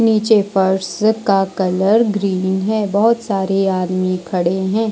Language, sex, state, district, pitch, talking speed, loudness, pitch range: Hindi, female, Jharkhand, Deoghar, 195 Hz, 135 wpm, -16 LUFS, 190-215 Hz